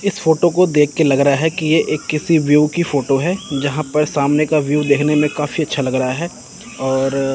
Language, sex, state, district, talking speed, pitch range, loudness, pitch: Hindi, male, Chandigarh, Chandigarh, 235 wpm, 140-160 Hz, -16 LUFS, 150 Hz